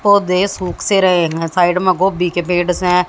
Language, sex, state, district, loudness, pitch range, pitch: Hindi, female, Haryana, Jhajjar, -15 LUFS, 175-190 Hz, 180 Hz